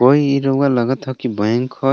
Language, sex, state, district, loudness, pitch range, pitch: Bhojpuri, male, Jharkhand, Palamu, -17 LUFS, 125-135 Hz, 130 Hz